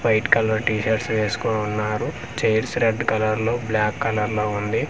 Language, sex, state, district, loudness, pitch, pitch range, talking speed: Telugu, male, Andhra Pradesh, Manyam, -22 LUFS, 110 Hz, 105-115 Hz, 170 wpm